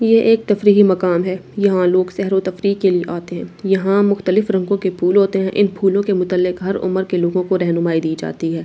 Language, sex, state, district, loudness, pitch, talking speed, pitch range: Hindi, female, Delhi, New Delhi, -16 LUFS, 190 Hz, 230 wpm, 180-200 Hz